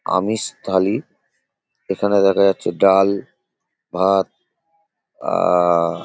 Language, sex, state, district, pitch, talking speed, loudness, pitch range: Bengali, male, West Bengal, Paschim Medinipur, 95 Hz, 90 wpm, -18 LUFS, 90-100 Hz